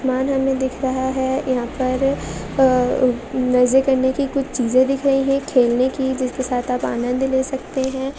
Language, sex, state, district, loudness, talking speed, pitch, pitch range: Hindi, female, Andhra Pradesh, Visakhapatnam, -19 LUFS, 190 wpm, 260 Hz, 255-270 Hz